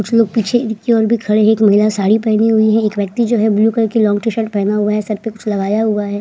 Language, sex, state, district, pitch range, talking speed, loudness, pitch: Hindi, female, Uttar Pradesh, Hamirpur, 210-225 Hz, 310 wpm, -14 LUFS, 220 Hz